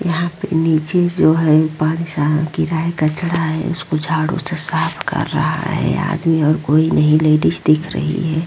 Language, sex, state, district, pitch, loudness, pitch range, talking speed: Hindi, female, Bihar, Vaishali, 160 Hz, -16 LUFS, 155-170 Hz, 185 wpm